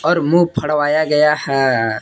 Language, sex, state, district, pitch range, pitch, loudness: Hindi, male, Jharkhand, Palamu, 135-150 Hz, 150 Hz, -15 LUFS